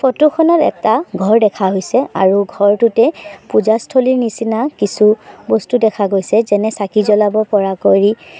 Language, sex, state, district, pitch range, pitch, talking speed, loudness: Assamese, male, Assam, Sonitpur, 200-230 Hz, 215 Hz, 135 wpm, -14 LUFS